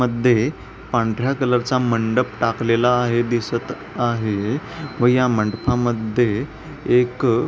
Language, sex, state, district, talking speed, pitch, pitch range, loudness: Marathi, male, Maharashtra, Pune, 120 wpm, 120 Hz, 115-125 Hz, -20 LUFS